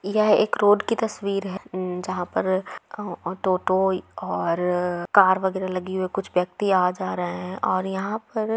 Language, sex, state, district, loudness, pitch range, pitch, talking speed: Magahi, female, Bihar, Gaya, -24 LUFS, 180-200 Hz, 185 Hz, 170 wpm